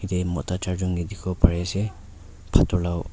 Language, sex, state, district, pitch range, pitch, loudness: Nagamese, male, Nagaland, Kohima, 85-90 Hz, 90 Hz, -24 LUFS